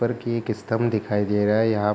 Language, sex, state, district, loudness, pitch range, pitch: Hindi, male, Bihar, Kishanganj, -23 LUFS, 105-115 Hz, 110 Hz